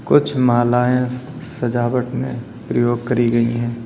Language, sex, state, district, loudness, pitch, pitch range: Hindi, male, Uttar Pradesh, Lalitpur, -18 LUFS, 120 Hz, 120-125 Hz